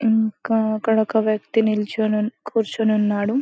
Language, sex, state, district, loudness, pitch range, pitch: Telugu, female, Telangana, Karimnagar, -21 LUFS, 215-225 Hz, 220 Hz